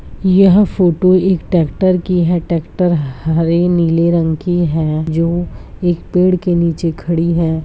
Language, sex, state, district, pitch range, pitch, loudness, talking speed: Hindi, female, Bihar, Purnia, 165-180 Hz, 170 Hz, -14 LUFS, 150 wpm